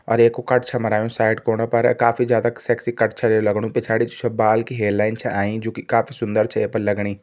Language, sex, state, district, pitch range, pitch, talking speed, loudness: Garhwali, male, Uttarakhand, Tehri Garhwal, 110-120 Hz, 115 Hz, 280 wpm, -20 LUFS